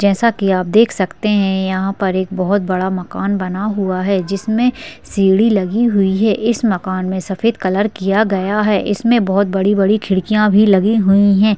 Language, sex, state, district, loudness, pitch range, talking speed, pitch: Hindi, female, Bihar, Madhepura, -15 LUFS, 190-215 Hz, 190 wpm, 200 Hz